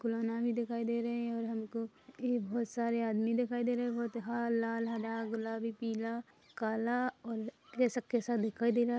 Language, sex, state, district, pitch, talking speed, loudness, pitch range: Hindi, female, Chhattisgarh, Rajnandgaon, 235 Hz, 195 wpm, -35 LUFS, 225-240 Hz